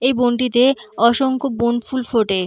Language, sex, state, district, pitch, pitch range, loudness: Bengali, female, West Bengal, North 24 Parganas, 245 Hz, 235-260 Hz, -17 LUFS